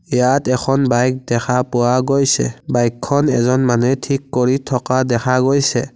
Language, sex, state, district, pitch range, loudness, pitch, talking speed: Assamese, male, Assam, Kamrup Metropolitan, 120-135 Hz, -16 LUFS, 130 Hz, 140 wpm